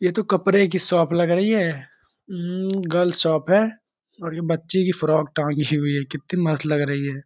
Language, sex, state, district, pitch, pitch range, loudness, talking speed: Hindi, male, Bihar, Purnia, 170 Hz, 155-185 Hz, -21 LUFS, 240 wpm